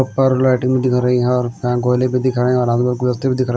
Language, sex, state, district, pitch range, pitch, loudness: Hindi, male, Himachal Pradesh, Shimla, 125-130 Hz, 125 Hz, -16 LUFS